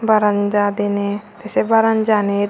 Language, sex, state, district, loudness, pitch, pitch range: Chakma, female, Tripura, Unakoti, -17 LUFS, 205 Hz, 205-215 Hz